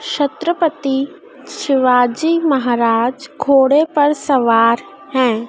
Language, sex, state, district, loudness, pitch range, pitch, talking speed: Hindi, female, Madhya Pradesh, Dhar, -15 LUFS, 245-315 Hz, 275 Hz, 75 wpm